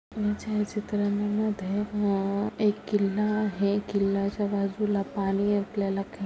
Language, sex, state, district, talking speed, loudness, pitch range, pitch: Marathi, female, Maharashtra, Sindhudurg, 115 wpm, -28 LUFS, 200-210 Hz, 205 Hz